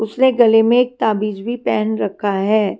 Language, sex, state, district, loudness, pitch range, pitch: Hindi, female, Himachal Pradesh, Shimla, -16 LUFS, 210-240 Hz, 220 Hz